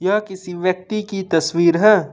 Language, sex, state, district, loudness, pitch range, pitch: Hindi, male, Jharkhand, Ranchi, -18 LUFS, 175-210 Hz, 190 Hz